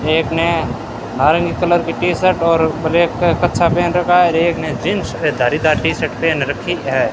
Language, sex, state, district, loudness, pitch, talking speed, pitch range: Hindi, male, Rajasthan, Bikaner, -16 LUFS, 170 Hz, 175 wpm, 165-175 Hz